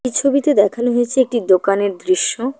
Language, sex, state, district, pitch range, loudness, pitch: Bengali, female, West Bengal, Cooch Behar, 205-270 Hz, -16 LUFS, 245 Hz